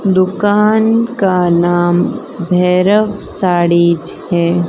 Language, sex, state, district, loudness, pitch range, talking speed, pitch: Hindi, female, Rajasthan, Barmer, -13 LUFS, 175-210 Hz, 75 wpm, 180 Hz